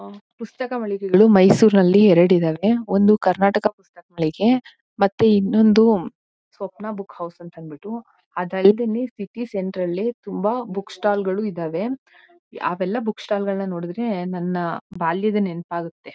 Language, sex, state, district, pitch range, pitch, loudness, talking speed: Kannada, female, Karnataka, Mysore, 180-220 Hz, 200 Hz, -20 LUFS, 110 wpm